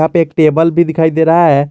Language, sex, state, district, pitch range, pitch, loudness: Hindi, male, Jharkhand, Garhwa, 160-165 Hz, 160 Hz, -11 LUFS